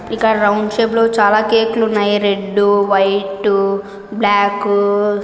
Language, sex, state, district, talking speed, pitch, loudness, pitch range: Telugu, female, Andhra Pradesh, Anantapur, 135 wpm, 205 Hz, -14 LUFS, 200-215 Hz